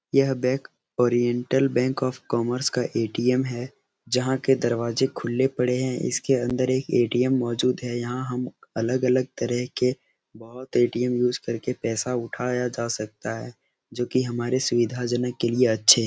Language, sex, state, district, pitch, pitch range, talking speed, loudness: Hindi, male, Bihar, Araria, 125 Hz, 120-130 Hz, 160 wpm, -24 LUFS